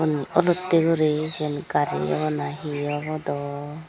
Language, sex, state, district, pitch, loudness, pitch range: Chakma, female, Tripura, Dhalai, 150 Hz, -24 LUFS, 145-155 Hz